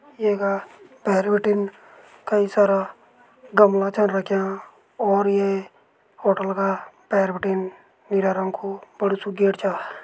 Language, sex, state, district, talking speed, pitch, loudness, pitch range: Garhwali, male, Uttarakhand, Uttarkashi, 130 wpm, 195 Hz, -22 LUFS, 195-205 Hz